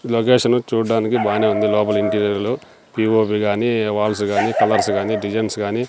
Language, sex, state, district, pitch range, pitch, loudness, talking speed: Telugu, male, Andhra Pradesh, Sri Satya Sai, 105-115 Hz, 105 Hz, -18 LUFS, 145 wpm